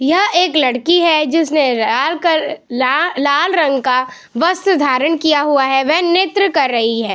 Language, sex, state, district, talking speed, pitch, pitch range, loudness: Hindi, female, Bihar, Saharsa, 175 wpm, 300 Hz, 265-340 Hz, -14 LUFS